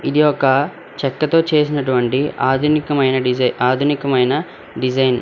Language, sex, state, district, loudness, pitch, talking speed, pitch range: Telugu, male, Telangana, Hyderabad, -17 LUFS, 135 Hz, 105 wpm, 130-150 Hz